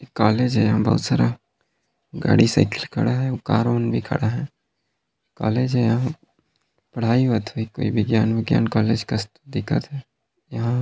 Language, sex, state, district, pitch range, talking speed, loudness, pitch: Hindi, male, Chhattisgarh, Sarguja, 110-130 Hz, 120 wpm, -21 LUFS, 115 Hz